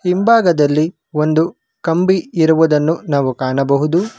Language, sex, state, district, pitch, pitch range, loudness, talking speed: Kannada, male, Karnataka, Bangalore, 160 Hz, 150-180 Hz, -15 LUFS, 85 wpm